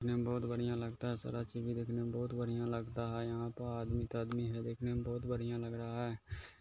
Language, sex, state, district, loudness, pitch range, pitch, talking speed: Hindi, male, Bihar, Kishanganj, -40 LUFS, 115-120 Hz, 120 Hz, 235 wpm